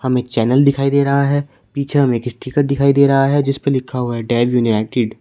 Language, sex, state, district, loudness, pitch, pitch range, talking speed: Hindi, male, Uttar Pradesh, Shamli, -16 LUFS, 135 Hz, 120-140 Hz, 255 wpm